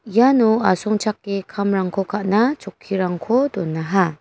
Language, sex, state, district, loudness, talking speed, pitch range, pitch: Garo, female, Meghalaya, West Garo Hills, -19 LUFS, 85 wpm, 190-220 Hz, 200 Hz